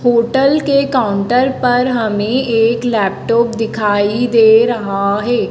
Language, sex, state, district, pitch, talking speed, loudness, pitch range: Hindi, female, Madhya Pradesh, Dhar, 235 Hz, 120 wpm, -13 LUFS, 215-250 Hz